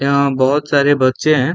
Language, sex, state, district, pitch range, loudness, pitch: Hindi, male, Chhattisgarh, Bilaspur, 130-145 Hz, -14 LUFS, 140 Hz